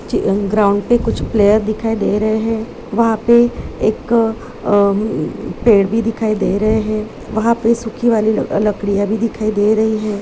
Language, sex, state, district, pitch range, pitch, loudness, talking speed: Hindi, female, Chhattisgarh, Balrampur, 210-225 Hz, 220 Hz, -16 LUFS, 175 wpm